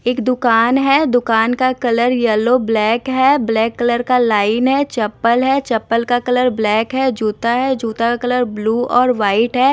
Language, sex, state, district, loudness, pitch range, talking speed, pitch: Hindi, female, Odisha, Nuapada, -15 LUFS, 225-255 Hz, 180 wpm, 240 Hz